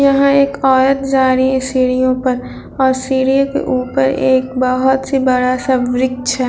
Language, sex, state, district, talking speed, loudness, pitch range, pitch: Hindi, female, Bihar, Vaishali, 165 wpm, -14 LUFS, 255-270 Hz, 260 Hz